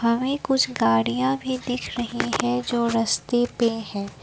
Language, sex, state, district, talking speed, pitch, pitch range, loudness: Hindi, female, Assam, Kamrup Metropolitan, 155 wpm, 230 Hz, 155-245 Hz, -23 LUFS